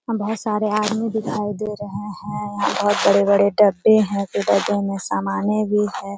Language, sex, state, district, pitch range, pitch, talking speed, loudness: Hindi, female, Bihar, Jamui, 200-215 Hz, 205 Hz, 165 wpm, -20 LUFS